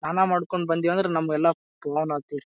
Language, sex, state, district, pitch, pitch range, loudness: Kannada, male, Karnataka, Bijapur, 165 Hz, 155-180 Hz, -25 LUFS